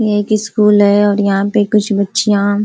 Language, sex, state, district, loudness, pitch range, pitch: Hindi, female, Uttar Pradesh, Ghazipur, -13 LUFS, 200-210 Hz, 205 Hz